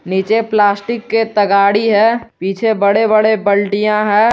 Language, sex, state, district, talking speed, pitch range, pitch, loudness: Hindi, male, Jharkhand, Garhwa, 140 wpm, 200-225 Hz, 210 Hz, -13 LUFS